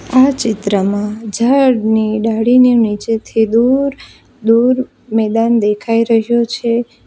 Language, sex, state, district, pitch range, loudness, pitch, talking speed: Gujarati, female, Gujarat, Valsad, 220-245 Hz, -13 LUFS, 230 Hz, 95 wpm